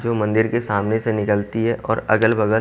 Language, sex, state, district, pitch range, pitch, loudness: Hindi, male, Haryana, Jhajjar, 105-115 Hz, 110 Hz, -20 LUFS